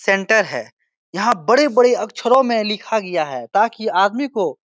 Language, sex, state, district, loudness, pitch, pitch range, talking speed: Hindi, male, Bihar, Supaul, -17 LUFS, 220 Hz, 195-245 Hz, 170 wpm